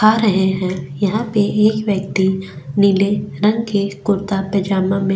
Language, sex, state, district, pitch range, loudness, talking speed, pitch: Hindi, female, Goa, North and South Goa, 190-210 Hz, -17 LUFS, 165 wpm, 200 Hz